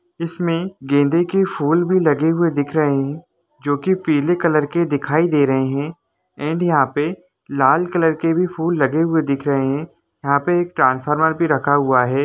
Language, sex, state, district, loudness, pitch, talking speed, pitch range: Hindi, male, Jharkhand, Jamtara, -18 LUFS, 160 Hz, 195 wpm, 145-170 Hz